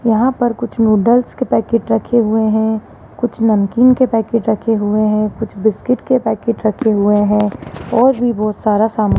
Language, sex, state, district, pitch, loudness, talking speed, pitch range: Hindi, female, Rajasthan, Jaipur, 225 Hz, -15 LUFS, 185 wpm, 215-235 Hz